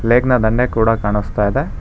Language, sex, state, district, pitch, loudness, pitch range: Kannada, male, Karnataka, Bangalore, 115 Hz, -16 LUFS, 105-125 Hz